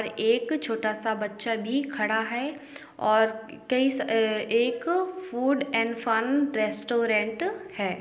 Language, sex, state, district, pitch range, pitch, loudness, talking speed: Hindi, female, Uttarakhand, Tehri Garhwal, 220-285 Hz, 235 Hz, -26 LUFS, 120 wpm